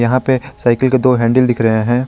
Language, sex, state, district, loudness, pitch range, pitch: Hindi, male, Jharkhand, Garhwa, -14 LUFS, 120-130 Hz, 125 Hz